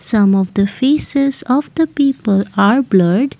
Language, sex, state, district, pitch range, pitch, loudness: English, female, Assam, Kamrup Metropolitan, 200-275 Hz, 250 Hz, -14 LUFS